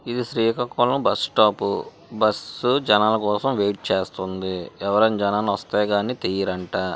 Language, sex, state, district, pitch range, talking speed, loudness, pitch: Telugu, male, Andhra Pradesh, Srikakulam, 95-115 Hz, 120 wpm, -22 LUFS, 105 Hz